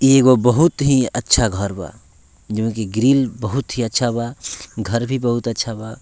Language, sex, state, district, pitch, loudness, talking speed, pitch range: Bhojpuri, male, Bihar, Muzaffarpur, 115 Hz, -18 LUFS, 170 wpm, 110-130 Hz